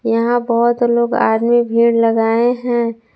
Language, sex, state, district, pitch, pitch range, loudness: Hindi, female, Jharkhand, Palamu, 235 Hz, 230-240 Hz, -15 LUFS